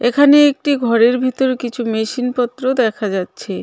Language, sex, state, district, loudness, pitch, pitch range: Bengali, female, West Bengal, Cooch Behar, -16 LUFS, 250 Hz, 230-260 Hz